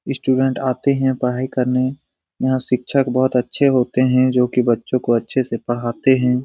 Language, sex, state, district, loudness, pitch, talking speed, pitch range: Hindi, male, Bihar, Lakhisarai, -18 LUFS, 130 Hz, 165 wpm, 125-130 Hz